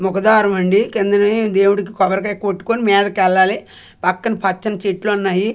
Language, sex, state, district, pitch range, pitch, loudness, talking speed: Telugu, female, Andhra Pradesh, Manyam, 190-210 Hz, 200 Hz, -16 LUFS, 95 wpm